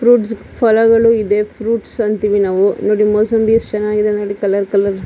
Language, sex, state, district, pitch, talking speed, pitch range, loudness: Kannada, female, Karnataka, Dakshina Kannada, 210 Hz, 180 wpm, 205-225 Hz, -14 LUFS